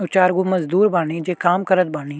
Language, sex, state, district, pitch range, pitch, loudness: Bhojpuri, male, Uttar Pradesh, Ghazipur, 165-185 Hz, 180 Hz, -18 LUFS